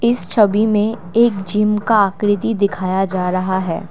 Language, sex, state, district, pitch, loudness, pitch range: Hindi, female, Assam, Kamrup Metropolitan, 205 Hz, -16 LUFS, 185-215 Hz